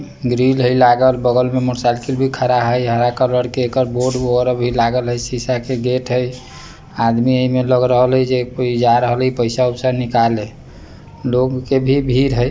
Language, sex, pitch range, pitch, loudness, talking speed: Bajjika, male, 120-130 Hz, 125 Hz, -16 LUFS, 180 wpm